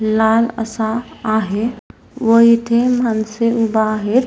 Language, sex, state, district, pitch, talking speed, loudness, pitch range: Marathi, female, Maharashtra, Solapur, 225 Hz, 110 wpm, -16 LUFS, 220-235 Hz